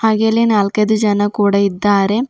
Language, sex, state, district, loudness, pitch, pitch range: Kannada, female, Karnataka, Bidar, -14 LUFS, 210 Hz, 205-220 Hz